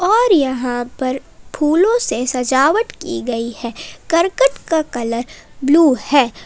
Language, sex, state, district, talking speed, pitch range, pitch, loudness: Hindi, female, Jharkhand, Palamu, 130 wpm, 245-335 Hz, 275 Hz, -16 LUFS